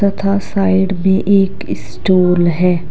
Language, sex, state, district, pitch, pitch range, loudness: Hindi, male, Uttar Pradesh, Saharanpur, 190 Hz, 175-195 Hz, -14 LUFS